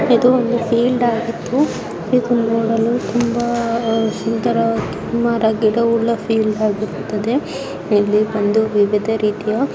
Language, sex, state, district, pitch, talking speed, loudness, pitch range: Kannada, male, Karnataka, Bijapur, 225 Hz, 90 wpm, -17 LUFS, 215-235 Hz